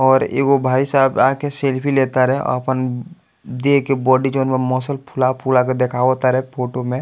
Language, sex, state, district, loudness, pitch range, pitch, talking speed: Bhojpuri, male, Bihar, East Champaran, -17 LUFS, 130-135 Hz, 130 Hz, 180 wpm